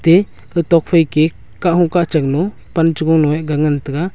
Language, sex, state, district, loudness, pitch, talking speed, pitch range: Wancho, male, Arunachal Pradesh, Longding, -15 LUFS, 165 Hz, 260 wpm, 155-175 Hz